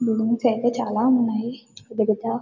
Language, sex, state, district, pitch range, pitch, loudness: Telugu, female, Telangana, Karimnagar, 220-240 Hz, 230 Hz, -22 LUFS